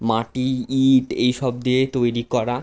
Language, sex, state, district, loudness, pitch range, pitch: Bengali, male, West Bengal, Jhargram, -20 LUFS, 120-130 Hz, 125 Hz